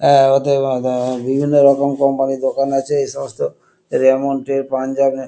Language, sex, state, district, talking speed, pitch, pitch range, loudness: Bengali, male, West Bengal, Kolkata, 160 wpm, 135 Hz, 135-140 Hz, -16 LUFS